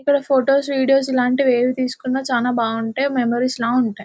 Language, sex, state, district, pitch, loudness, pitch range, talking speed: Telugu, female, Telangana, Nalgonda, 255 Hz, -18 LUFS, 240-270 Hz, 165 wpm